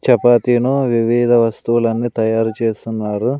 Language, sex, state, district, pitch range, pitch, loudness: Telugu, male, Andhra Pradesh, Sri Satya Sai, 115-120 Hz, 115 Hz, -16 LUFS